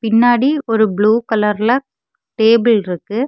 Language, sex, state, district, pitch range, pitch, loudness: Tamil, female, Tamil Nadu, Kanyakumari, 215-240 Hz, 225 Hz, -14 LUFS